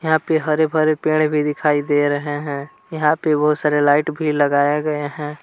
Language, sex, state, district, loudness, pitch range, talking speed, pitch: Hindi, male, Jharkhand, Palamu, -18 LUFS, 145-155 Hz, 200 wpm, 150 Hz